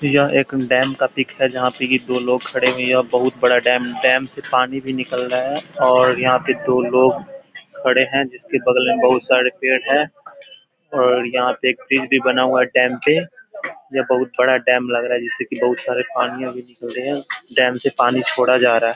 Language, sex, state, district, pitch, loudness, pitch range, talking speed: Hindi, male, Bihar, Vaishali, 130 Hz, -17 LUFS, 125-135 Hz, 215 wpm